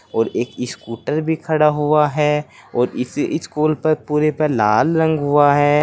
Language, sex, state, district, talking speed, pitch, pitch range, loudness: Hindi, male, Uttar Pradesh, Saharanpur, 175 wpm, 150 Hz, 130-155 Hz, -18 LUFS